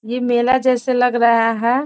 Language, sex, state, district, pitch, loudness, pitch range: Hindi, female, Bihar, Gopalganj, 245 Hz, -16 LUFS, 235-255 Hz